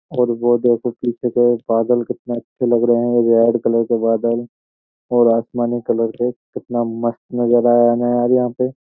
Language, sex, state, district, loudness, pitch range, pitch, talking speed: Hindi, male, Uttar Pradesh, Jyotiba Phule Nagar, -17 LUFS, 115-120 Hz, 120 Hz, 190 wpm